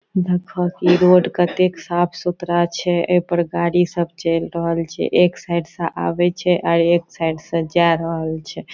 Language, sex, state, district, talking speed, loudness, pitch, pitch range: Maithili, female, Bihar, Saharsa, 200 wpm, -19 LUFS, 175 Hz, 165-175 Hz